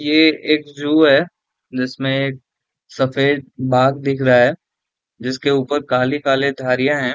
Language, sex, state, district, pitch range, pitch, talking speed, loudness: Hindi, male, Bihar, Saran, 130-145 Hz, 135 Hz, 145 wpm, -17 LUFS